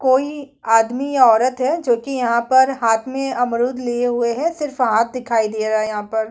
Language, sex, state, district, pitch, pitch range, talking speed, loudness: Hindi, female, Chhattisgarh, Kabirdham, 245 Hz, 225-265 Hz, 220 wpm, -18 LUFS